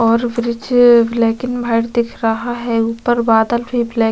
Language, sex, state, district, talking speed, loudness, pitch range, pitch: Hindi, female, Uttar Pradesh, Etah, 190 wpm, -15 LUFS, 230-240 Hz, 235 Hz